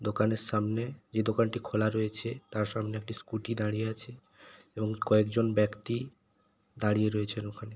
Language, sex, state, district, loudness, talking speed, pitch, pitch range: Bengali, male, West Bengal, Paschim Medinipur, -31 LUFS, 140 wpm, 110 Hz, 105-115 Hz